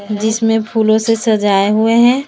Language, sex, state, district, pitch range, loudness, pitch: Hindi, female, Chhattisgarh, Raipur, 215-225 Hz, -13 LUFS, 220 Hz